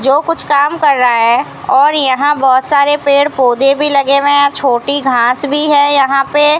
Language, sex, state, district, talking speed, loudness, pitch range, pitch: Hindi, female, Rajasthan, Bikaner, 200 wpm, -11 LUFS, 270-295 Hz, 285 Hz